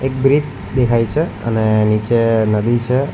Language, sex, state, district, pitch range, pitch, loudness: Gujarati, male, Gujarat, Valsad, 110-130 Hz, 115 Hz, -16 LUFS